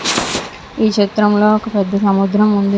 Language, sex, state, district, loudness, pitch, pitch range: Telugu, female, Andhra Pradesh, Visakhapatnam, -15 LUFS, 205 Hz, 200-210 Hz